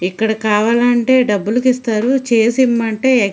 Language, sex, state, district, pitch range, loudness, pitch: Telugu, female, Andhra Pradesh, Srikakulam, 220-250 Hz, -14 LUFS, 230 Hz